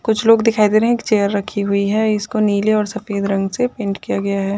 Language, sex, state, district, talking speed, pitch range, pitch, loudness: Hindi, female, Maharashtra, Dhule, 275 wpm, 200-220 Hz, 210 Hz, -17 LUFS